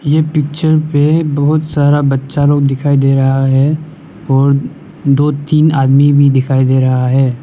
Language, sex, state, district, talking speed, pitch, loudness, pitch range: Hindi, male, Arunachal Pradesh, Lower Dibang Valley, 160 wpm, 145 Hz, -12 LUFS, 135-150 Hz